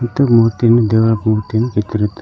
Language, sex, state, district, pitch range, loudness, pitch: Kannada, male, Karnataka, Koppal, 110-120 Hz, -14 LUFS, 110 Hz